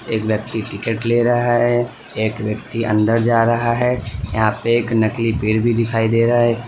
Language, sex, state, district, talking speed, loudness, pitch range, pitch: Hindi, male, Gujarat, Valsad, 200 wpm, -18 LUFS, 110-120 Hz, 115 Hz